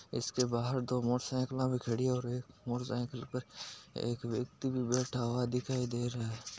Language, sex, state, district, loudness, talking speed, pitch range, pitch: Marwari, male, Rajasthan, Nagaur, -36 LUFS, 200 wpm, 120-125 Hz, 125 Hz